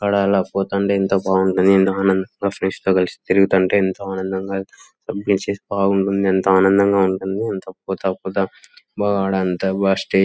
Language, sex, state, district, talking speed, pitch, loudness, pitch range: Telugu, male, Andhra Pradesh, Anantapur, 95 wpm, 95 Hz, -19 LUFS, 95-100 Hz